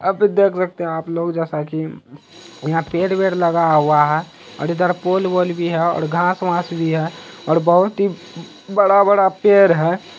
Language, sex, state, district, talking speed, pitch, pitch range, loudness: Hindi, male, Bihar, Araria, 195 wpm, 170 Hz, 165-185 Hz, -17 LUFS